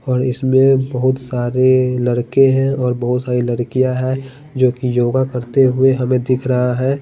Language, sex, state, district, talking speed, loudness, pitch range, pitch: Hindi, male, Bihar, Patna, 170 wpm, -16 LUFS, 125-130 Hz, 130 Hz